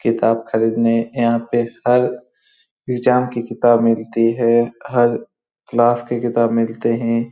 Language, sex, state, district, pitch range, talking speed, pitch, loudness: Hindi, male, Bihar, Saran, 115-120 Hz, 115 wpm, 115 Hz, -17 LUFS